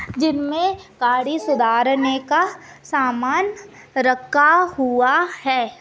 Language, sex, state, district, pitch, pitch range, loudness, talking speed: Hindi, female, Maharashtra, Sindhudurg, 280 Hz, 255-340 Hz, -19 LUFS, 85 wpm